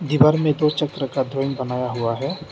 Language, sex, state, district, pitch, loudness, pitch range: Hindi, male, Arunachal Pradesh, Lower Dibang Valley, 140 Hz, -21 LUFS, 130-150 Hz